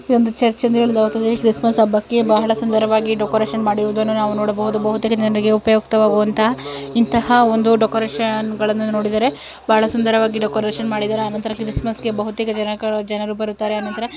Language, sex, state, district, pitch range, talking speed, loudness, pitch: Kannada, female, Karnataka, Belgaum, 215-225 Hz, 135 wpm, -17 LUFS, 220 Hz